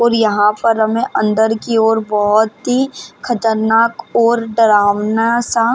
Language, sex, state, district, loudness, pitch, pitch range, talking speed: Hindi, female, Maharashtra, Chandrapur, -14 LUFS, 225 Hz, 215-230 Hz, 145 wpm